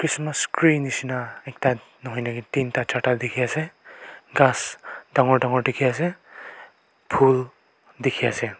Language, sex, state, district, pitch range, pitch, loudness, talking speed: Nagamese, male, Nagaland, Kohima, 125-145 Hz, 130 Hz, -23 LUFS, 105 wpm